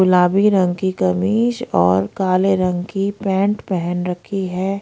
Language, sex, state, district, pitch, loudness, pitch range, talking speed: Hindi, female, Haryana, Rohtak, 185 Hz, -18 LUFS, 180-195 Hz, 150 wpm